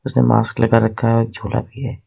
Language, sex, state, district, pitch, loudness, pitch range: Hindi, male, Jharkhand, Ranchi, 115 Hz, -17 LUFS, 110-115 Hz